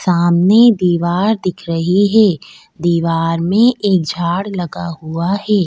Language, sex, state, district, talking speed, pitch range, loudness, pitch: Hindi, female, Delhi, New Delhi, 125 wpm, 170-205 Hz, -14 LUFS, 180 Hz